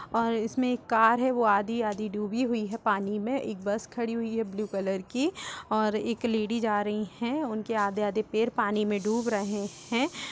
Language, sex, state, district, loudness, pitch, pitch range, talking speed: Hindi, female, Uttar Pradesh, Etah, -29 LUFS, 220 Hz, 210-235 Hz, 205 wpm